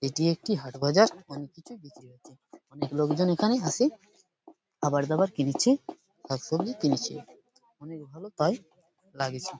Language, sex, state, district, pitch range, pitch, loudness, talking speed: Bengali, male, West Bengal, Purulia, 145-210 Hz, 165 Hz, -27 LUFS, 115 wpm